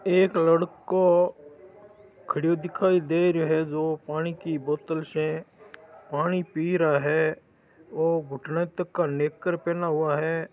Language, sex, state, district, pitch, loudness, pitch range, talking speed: Marwari, male, Rajasthan, Nagaur, 165 Hz, -25 LUFS, 155-180 Hz, 135 wpm